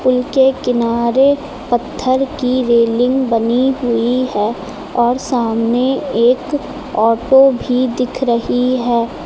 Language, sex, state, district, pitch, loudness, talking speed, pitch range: Hindi, female, Uttar Pradesh, Lucknow, 250 Hz, -15 LUFS, 110 wpm, 235-265 Hz